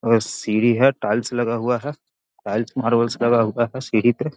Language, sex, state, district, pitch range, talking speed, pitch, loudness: Magahi, male, Bihar, Jahanabad, 115-125 Hz, 190 wpm, 120 Hz, -20 LUFS